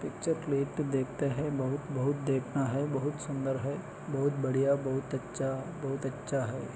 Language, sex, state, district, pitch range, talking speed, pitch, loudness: Hindi, male, Maharashtra, Solapur, 135-145 Hz, 160 wpm, 140 Hz, -33 LUFS